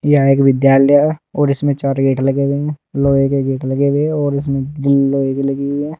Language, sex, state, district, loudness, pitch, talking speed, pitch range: Hindi, male, Uttar Pradesh, Saharanpur, -15 LUFS, 140 Hz, 250 wpm, 135-145 Hz